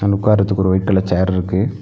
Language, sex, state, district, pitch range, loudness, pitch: Tamil, male, Tamil Nadu, Nilgiris, 95-100 Hz, -16 LUFS, 95 Hz